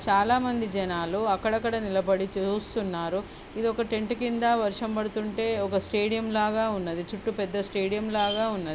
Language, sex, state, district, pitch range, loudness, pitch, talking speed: Telugu, female, Karnataka, Raichur, 195-225 Hz, -27 LUFS, 210 Hz, 135 wpm